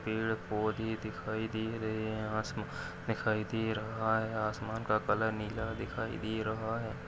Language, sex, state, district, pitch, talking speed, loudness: Hindi, male, Maharashtra, Nagpur, 110 Hz, 160 wpm, -35 LUFS